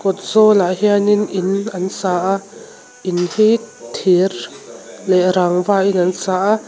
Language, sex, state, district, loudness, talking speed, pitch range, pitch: Mizo, female, Mizoram, Aizawl, -16 LUFS, 155 wpm, 185-205 Hz, 195 Hz